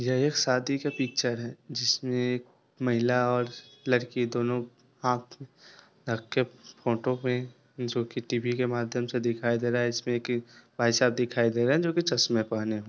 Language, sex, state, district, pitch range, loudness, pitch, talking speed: Hindi, male, Bihar, Sitamarhi, 120-130 Hz, -28 LUFS, 125 Hz, 180 wpm